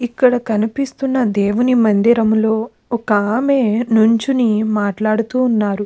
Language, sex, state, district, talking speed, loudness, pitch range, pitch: Telugu, female, Andhra Pradesh, Krishna, 90 wpm, -16 LUFS, 215-250 Hz, 225 Hz